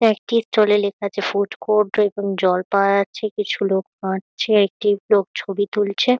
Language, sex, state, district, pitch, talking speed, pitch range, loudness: Bengali, female, West Bengal, Kolkata, 205 Hz, 175 wpm, 200-210 Hz, -20 LUFS